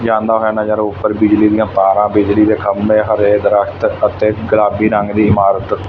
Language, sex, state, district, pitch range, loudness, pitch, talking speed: Punjabi, male, Punjab, Fazilka, 105-110 Hz, -13 LUFS, 105 Hz, 185 wpm